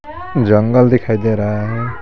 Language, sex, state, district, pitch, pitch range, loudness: Hindi, male, Jharkhand, Garhwa, 115 Hz, 105-125 Hz, -15 LUFS